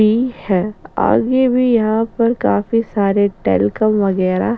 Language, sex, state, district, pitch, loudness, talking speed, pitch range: Hindi, female, Bihar, Patna, 215 Hz, -16 LUFS, 145 wpm, 195-230 Hz